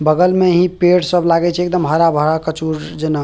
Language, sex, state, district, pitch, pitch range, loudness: Maithili, male, Bihar, Purnia, 170 Hz, 155-180 Hz, -15 LUFS